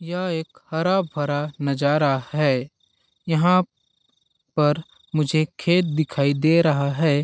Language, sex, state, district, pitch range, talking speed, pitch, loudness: Hindi, male, Chhattisgarh, Balrampur, 145-165 Hz, 110 wpm, 155 Hz, -22 LUFS